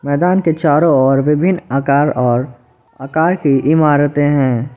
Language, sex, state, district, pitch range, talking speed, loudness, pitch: Hindi, male, Jharkhand, Ranchi, 135-155 Hz, 140 wpm, -13 LUFS, 145 Hz